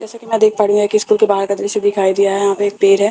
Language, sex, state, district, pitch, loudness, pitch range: Hindi, female, Bihar, Katihar, 205 Hz, -14 LUFS, 200-215 Hz